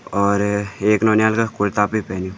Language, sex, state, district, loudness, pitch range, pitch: Garhwali, male, Uttarakhand, Uttarkashi, -18 LUFS, 100-110 Hz, 105 Hz